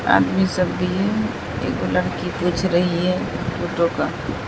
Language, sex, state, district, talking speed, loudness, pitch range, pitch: Hindi, female, Bihar, Katihar, 145 wpm, -21 LUFS, 170-185 Hz, 180 Hz